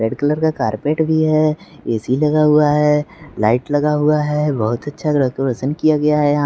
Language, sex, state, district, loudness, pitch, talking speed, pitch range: Hindi, male, Bihar, West Champaran, -17 LUFS, 150 Hz, 185 wpm, 135-150 Hz